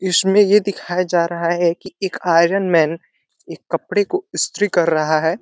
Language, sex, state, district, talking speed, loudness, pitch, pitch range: Hindi, male, Uttar Pradesh, Deoria, 190 wpm, -17 LUFS, 180 Hz, 170-200 Hz